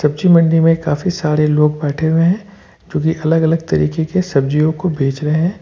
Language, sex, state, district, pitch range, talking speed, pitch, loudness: Hindi, male, Jharkhand, Ranchi, 150-170 Hz, 190 wpm, 160 Hz, -15 LUFS